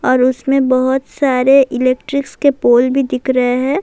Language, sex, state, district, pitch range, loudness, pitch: Urdu, female, Bihar, Saharsa, 255-275 Hz, -14 LUFS, 260 Hz